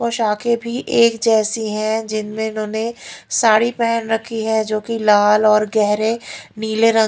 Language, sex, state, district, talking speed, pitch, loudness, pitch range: Hindi, female, Haryana, Rohtak, 150 wpm, 220 Hz, -17 LUFS, 215-230 Hz